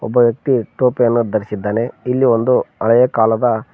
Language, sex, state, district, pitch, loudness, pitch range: Kannada, male, Karnataka, Koppal, 120 Hz, -16 LUFS, 110-125 Hz